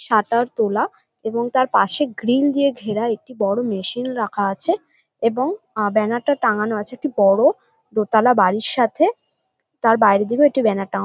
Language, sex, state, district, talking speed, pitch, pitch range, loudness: Bengali, female, West Bengal, North 24 Parganas, 155 wpm, 235 Hz, 215-260 Hz, -19 LUFS